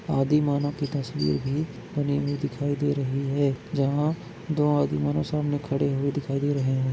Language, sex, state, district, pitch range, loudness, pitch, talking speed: Hindi, male, Chhattisgarh, Bastar, 135-145 Hz, -26 LUFS, 145 Hz, 175 wpm